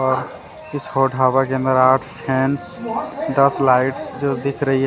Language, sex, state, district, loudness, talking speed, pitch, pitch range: Hindi, male, Jharkhand, Deoghar, -17 LUFS, 160 wpm, 135 Hz, 130-140 Hz